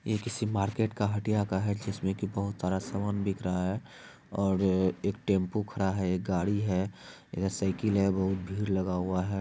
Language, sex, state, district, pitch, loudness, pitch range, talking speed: Hindi, male, Bihar, Supaul, 100 Hz, -31 LUFS, 95-105 Hz, 195 wpm